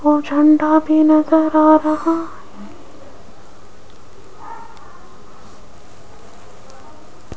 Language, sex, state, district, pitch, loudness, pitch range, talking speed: Hindi, female, Rajasthan, Jaipur, 310 Hz, -14 LUFS, 305-320 Hz, 50 wpm